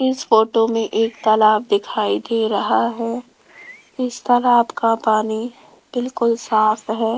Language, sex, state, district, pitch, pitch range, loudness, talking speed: Hindi, female, Rajasthan, Jaipur, 230 Hz, 220-245 Hz, -18 LUFS, 135 wpm